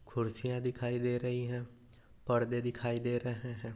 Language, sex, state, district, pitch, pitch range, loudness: Hindi, male, Maharashtra, Nagpur, 120 Hz, 120-125 Hz, -35 LUFS